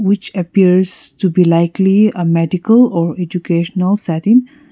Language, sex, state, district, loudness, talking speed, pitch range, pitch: English, female, Nagaland, Kohima, -13 LUFS, 125 wpm, 170-205 Hz, 185 Hz